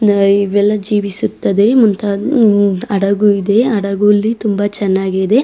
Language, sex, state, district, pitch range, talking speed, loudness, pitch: Kannada, female, Karnataka, Dakshina Kannada, 200-210 Hz, 110 wpm, -13 LUFS, 205 Hz